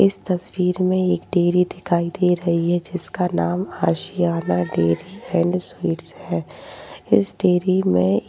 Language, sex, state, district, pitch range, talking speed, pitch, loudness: Hindi, female, Uttar Pradesh, Jyotiba Phule Nagar, 165-180 Hz, 145 wpm, 175 Hz, -21 LUFS